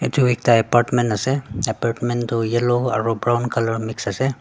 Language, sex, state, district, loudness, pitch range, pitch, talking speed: Nagamese, female, Nagaland, Dimapur, -20 LUFS, 115-120 Hz, 120 Hz, 165 wpm